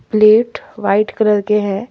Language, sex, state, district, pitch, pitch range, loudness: Hindi, female, Jharkhand, Palamu, 210 Hz, 205-215 Hz, -14 LUFS